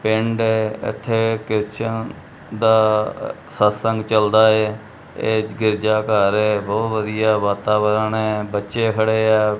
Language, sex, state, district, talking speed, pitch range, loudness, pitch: Punjabi, male, Punjab, Kapurthala, 120 wpm, 105-110 Hz, -19 LUFS, 110 Hz